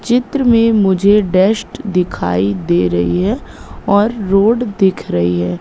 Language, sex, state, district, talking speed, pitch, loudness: Hindi, female, Madhya Pradesh, Katni, 140 wpm, 195 Hz, -14 LUFS